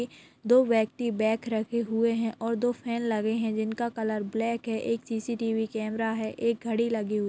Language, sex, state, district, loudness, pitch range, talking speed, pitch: Hindi, female, Chhattisgarh, Raigarh, -28 LUFS, 220-235 Hz, 190 wpm, 225 Hz